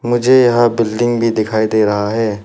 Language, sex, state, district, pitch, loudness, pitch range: Hindi, male, Arunachal Pradesh, Papum Pare, 115 Hz, -14 LUFS, 110-120 Hz